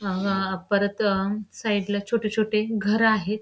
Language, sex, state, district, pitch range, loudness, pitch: Marathi, female, Maharashtra, Pune, 200-215 Hz, -24 LUFS, 205 Hz